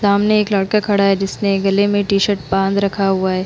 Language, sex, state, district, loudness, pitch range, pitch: Hindi, female, Bihar, Vaishali, -16 LUFS, 195-205 Hz, 200 Hz